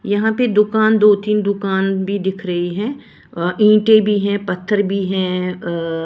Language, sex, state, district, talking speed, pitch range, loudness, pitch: Hindi, female, Maharashtra, Washim, 170 wpm, 185-210 Hz, -16 LUFS, 200 Hz